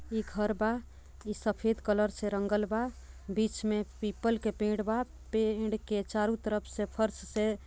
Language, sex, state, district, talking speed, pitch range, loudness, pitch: Bhojpuri, female, Bihar, Gopalganj, 180 wpm, 210-220 Hz, -33 LUFS, 215 Hz